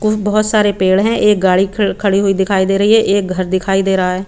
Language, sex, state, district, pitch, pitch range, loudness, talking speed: Hindi, female, Chandigarh, Chandigarh, 195 Hz, 190-210 Hz, -13 LUFS, 265 wpm